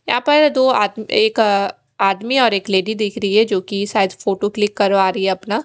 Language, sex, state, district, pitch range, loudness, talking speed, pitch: Hindi, female, Odisha, Khordha, 195-220 Hz, -17 LUFS, 210 wpm, 205 Hz